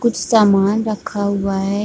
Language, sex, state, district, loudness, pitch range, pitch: Hindi, female, Chhattisgarh, Bilaspur, -17 LUFS, 200-220 Hz, 205 Hz